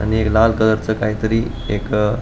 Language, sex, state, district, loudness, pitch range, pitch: Marathi, male, Goa, North and South Goa, -18 LUFS, 105-110 Hz, 110 Hz